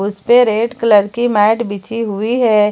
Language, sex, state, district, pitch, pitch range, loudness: Hindi, female, Jharkhand, Palamu, 225 Hz, 210-235 Hz, -14 LUFS